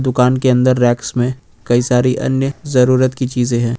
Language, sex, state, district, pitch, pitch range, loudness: Hindi, male, Jharkhand, Ranchi, 125 Hz, 120-130 Hz, -15 LUFS